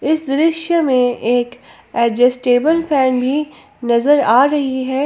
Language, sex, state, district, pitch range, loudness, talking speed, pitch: Hindi, female, Jharkhand, Palamu, 245-295 Hz, -15 LUFS, 130 wpm, 265 Hz